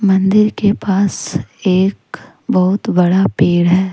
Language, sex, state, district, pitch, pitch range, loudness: Hindi, female, Jharkhand, Deoghar, 190 Hz, 185-200 Hz, -14 LUFS